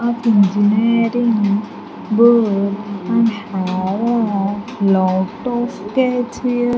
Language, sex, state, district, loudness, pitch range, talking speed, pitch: English, female, Andhra Pradesh, Sri Satya Sai, -17 LUFS, 200-235 Hz, 90 wpm, 220 Hz